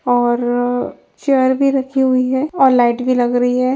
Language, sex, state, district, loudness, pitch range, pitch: Hindi, female, Chhattisgarh, Raigarh, -15 LUFS, 245-265 Hz, 255 Hz